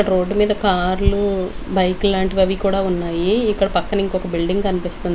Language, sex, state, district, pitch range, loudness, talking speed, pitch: Telugu, female, Andhra Pradesh, Manyam, 180-200 Hz, -19 LUFS, 140 wpm, 190 Hz